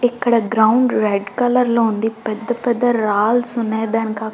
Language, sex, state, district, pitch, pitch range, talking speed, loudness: Telugu, female, Telangana, Karimnagar, 225 Hz, 220-240 Hz, 140 wpm, -17 LUFS